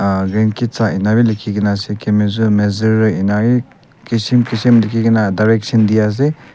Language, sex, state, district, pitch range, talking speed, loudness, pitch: Nagamese, male, Nagaland, Kohima, 105-115 Hz, 145 wpm, -14 LUFS, 110 Hz